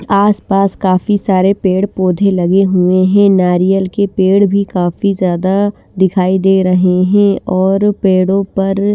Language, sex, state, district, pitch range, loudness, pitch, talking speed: Hindi, female, Bihar, Patna, 185-200 Hz, -12 LUFS, 195 Hz, 145 wpm